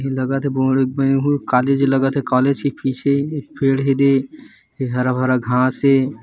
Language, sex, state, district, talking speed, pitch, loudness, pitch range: Hindi, male, Chhattisgarh, Bilaspur, 135 wpm, 135 Hz, -18 LUFS, 130-140 Hz